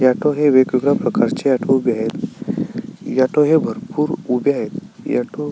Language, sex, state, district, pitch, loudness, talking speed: Marathi, male, Maharashtra, Sindhudurg, 145 Hz, -18 LUFS, 150 wpm